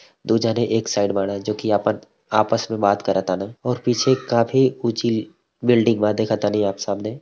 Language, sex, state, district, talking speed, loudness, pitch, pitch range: Bhojpuri, male, Uttar Pradesh, Ghazipur, 175 wpm, -20 LUFS, 110 Hz, 105-115 Hz